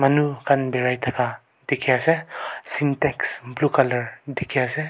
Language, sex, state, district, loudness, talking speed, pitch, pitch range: Nagamese, male, Nagaland, Kohima, -23 LUFS, 135 wpm, 140 Hz, 125-150 Hz